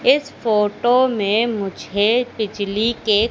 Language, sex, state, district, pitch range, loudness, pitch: Hindi, female, Madhya Pradesh, Katni, 210-240 Hz, -19 LUFS, 220 Hz